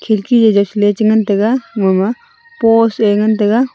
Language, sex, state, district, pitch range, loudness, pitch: Wancho, female, Arunachal Pradesh, Longding, 210-230 Hz, -13 LUFS, 220 Hz